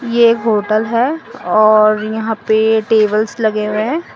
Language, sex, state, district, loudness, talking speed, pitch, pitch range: Hindi, female, Assam, Sonitpur, -14 LUFS, 160 wpm, 220 Hz, 215-230 Hz